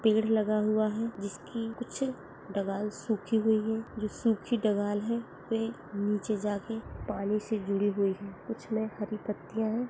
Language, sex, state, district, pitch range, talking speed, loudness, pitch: Hindi, female, Jharkhand, Jamtara, 205-225 Hz, 170 wpm, -32 LUFS, 215 Hz